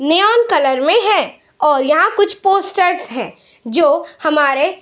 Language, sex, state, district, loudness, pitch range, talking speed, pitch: Hindi, female, Bihar, Saharsa, -14 LUFS, 295-395 Hz, 150 wpm, 330 Hz